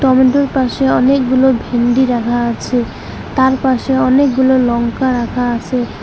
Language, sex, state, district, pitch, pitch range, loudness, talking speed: Bengali, female, West Bengal, Alipurduar, 255 Hz, 240-265 Hz, -13 LUFS, 120 wpm